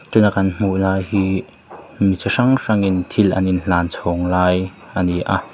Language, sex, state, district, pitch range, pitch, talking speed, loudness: Mizo, male, Mizoram, Aizawl, 90-100 Hz, 95 Hz, 195 wpm, -18 LUFS